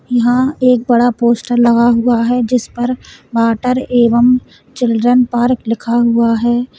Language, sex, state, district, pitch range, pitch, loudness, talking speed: Hindi, female, Uttar Pradesh, Lalitpur, 235-250 Hz, 240 Hz, -13 LUFS, 140 wpm